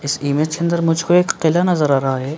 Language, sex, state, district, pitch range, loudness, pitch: Hindi, male, Chhattisgarh, Bilaspur, 140-170 Hz, -17 LUFS, 160 Hz